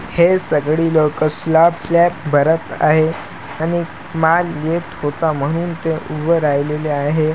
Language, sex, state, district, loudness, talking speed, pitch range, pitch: Marathi, male, Maharashtra, Chandrapur, -17 LUFS, 130 wpm, 150-165 Hz, 160 Hz